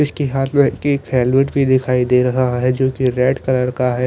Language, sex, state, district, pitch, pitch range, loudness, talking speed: Hindi, male, Chandigarh, Chandigarh, 130 Hz, 125-135 Hz, -16 LUFS, 220 wpm